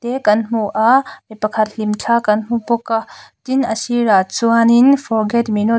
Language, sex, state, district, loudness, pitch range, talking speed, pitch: Mizo, female, Mizoram, Aizawl, -16 LUFS, 215-235 Hz, 205 wpm, 230 Hz